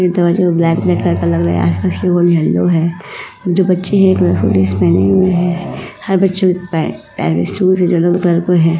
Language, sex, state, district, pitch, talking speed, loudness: Hindi, female, Uttar Pradesh, Muzaffarnagar, 175 Hz, 75 wpm, -13 LUFS